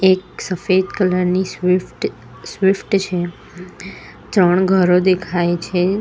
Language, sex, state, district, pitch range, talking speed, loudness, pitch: Gujarati, female, Gujarat, Valsad, 180-190 Hz, 110 wpm, -17 LUFS, 185 Hz